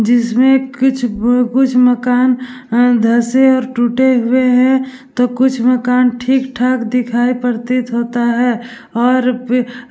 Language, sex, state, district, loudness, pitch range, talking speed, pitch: Hindi, female, Bihar, Vaishali, -14 LUFS, 240-255 Hz, 115 wpm, 250 Hz